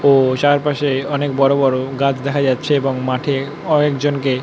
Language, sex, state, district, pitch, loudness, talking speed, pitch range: Bengali, male, West Bengal, North 24 Parganas, 140 Hz, -17 LUFS, 175 wpm, 135-145 Hz